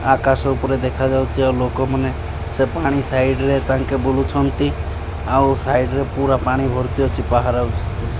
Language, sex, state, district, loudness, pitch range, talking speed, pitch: Odia, male, Odisha, Malkangiri, -19 LUFS, 120-135 Hz, 140 wpm, 130 Hz